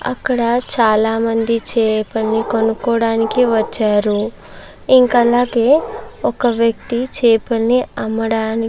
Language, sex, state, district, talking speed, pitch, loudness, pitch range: Telugu, female, Andhra Pradesh, Chittoor, 75 wpm, 230 Hz, -16 LUFS, 220-240 Hz